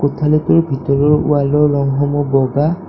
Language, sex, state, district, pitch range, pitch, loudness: Assamese, male, Assam, Kamrup Metropolitan, 140-150 Hz, 145 Hz, -14 LUFS